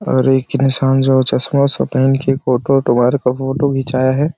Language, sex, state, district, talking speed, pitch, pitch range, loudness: Hindi, male, Chhattisgarh, Sarguja, 220 wpm, 135 Hz, 130-135 Hz, -14 LUFS